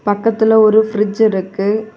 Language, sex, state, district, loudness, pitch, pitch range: Tamil, female, Tamil Nadu, Kanyakumari, -14 LUFS, 215 Hz, 205-220 Hz